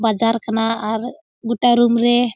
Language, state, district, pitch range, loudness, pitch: Surjapuri, Bihar, Kishanganj, 225-240 Hz, -17 LUFS, 230 Hz